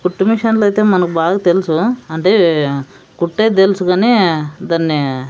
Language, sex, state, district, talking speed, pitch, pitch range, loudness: Telugu, female, Andhra Pradesh, Sri Satya Sai, 125 wpm, 180 Hz, 160-200 Hz, -14 LUFS